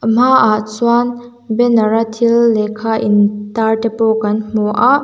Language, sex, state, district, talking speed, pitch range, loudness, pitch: Mizo, female, Mizoram, Aizawl, 165 wpm, 215-235 Hz, -14 LUFS, 225 Hz